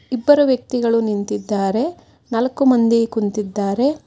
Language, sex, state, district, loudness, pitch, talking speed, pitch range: Kannada, female, Karnataka, Bangalore, -18 LUFS, 230 Hz, 90 wpm, 210-260 Hz